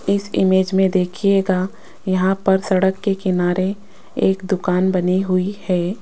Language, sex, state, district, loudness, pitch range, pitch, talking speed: Hindi, female, Rajasthan, Jaipur, -18 LUFS, 185-195 Hz, 190 Hz, 140 wpm